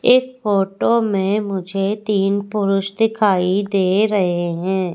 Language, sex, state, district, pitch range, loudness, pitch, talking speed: Hindi, female, Madhya Pradesh, Katni, 190-210 Hz, -18 LUFS, 200 Hz, 120 wpm